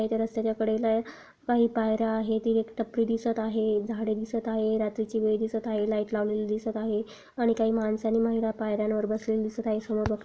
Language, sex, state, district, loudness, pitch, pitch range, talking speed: Marathi, female, Maharashtra, Sindhudurg, -28 LUFS, 220 Hz, 215-225 Hz, 210 wpm